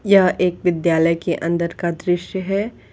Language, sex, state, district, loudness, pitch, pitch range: Hindi, female, Uttar Pradesh, Varanasi, -19 LUFS, 175 Hz, 170-190 Hz